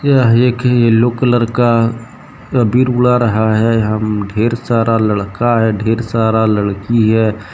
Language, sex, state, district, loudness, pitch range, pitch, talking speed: Hindi, male, Jharkhand, Deoghar, -13 LUFS, 110-120 Hz, 115 Hz, 145 wpm